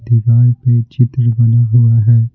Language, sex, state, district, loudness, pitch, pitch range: Hindi, male, Bihar, Patna, -12 LUFS, 120 Hz, 115-120 Hz